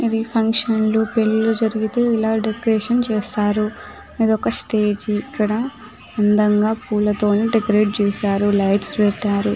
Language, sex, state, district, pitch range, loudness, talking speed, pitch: Telugu, female, Telangana, Nalgonda, 210-225 Hz, -18 LUFS, 120 wpm, 215 Hz